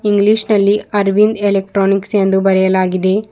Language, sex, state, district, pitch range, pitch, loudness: Kannada, female, Karnataka, Bidar, 195-210 Hz, 200 Hz, -13 LUFS